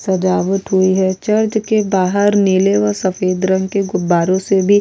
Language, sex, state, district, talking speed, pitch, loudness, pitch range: Hindi, female, Goa, North and South Goa, 185 wpm, 190 Hz, -15 LUFS, 185-205 Hz